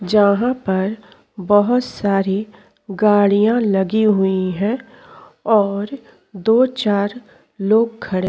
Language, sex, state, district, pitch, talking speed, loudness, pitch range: Hindi, female, Uttar Pradesh, Jyotiba Phule Nagar, 205 Hz, 100 wpm, -17 LUFS, 195-225 Hz